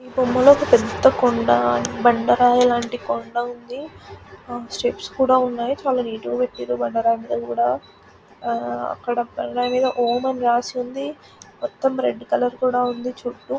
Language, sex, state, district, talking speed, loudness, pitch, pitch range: Telugu, female, Telangana, Nalgonda, 100 wpm, -20 LUFS, 245 Hz, 230-255 Hz